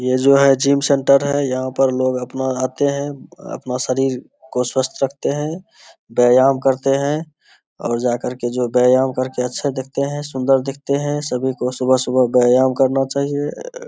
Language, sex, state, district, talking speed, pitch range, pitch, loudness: Hindi, male, Bihar, Saharsa, 170 wpm, 130-140 Hz, 130 Hz, -18 LUFS